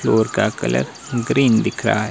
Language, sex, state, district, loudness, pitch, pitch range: Hindi, male, Himachal Pradesh, Shimla, -19 LUFS, 110 Hz, 105-120 Hz